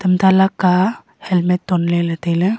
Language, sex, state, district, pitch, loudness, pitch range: Wancho, female, Arunachal Pradesh, Longding, 180 Hz, -16 LUFS, 175-190 Hz